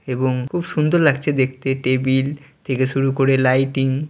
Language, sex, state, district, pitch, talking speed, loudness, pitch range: Bengali, male, West Bengal, Purulia, 135 Hz, 145 wpm, -19 LUFS, 130-145 Hz